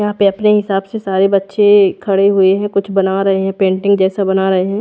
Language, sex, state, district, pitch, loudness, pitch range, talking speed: Hindi, female, Odisha, Khordha, 195 Hz, -13 LUFS, 190-205 Hz, 235 wpm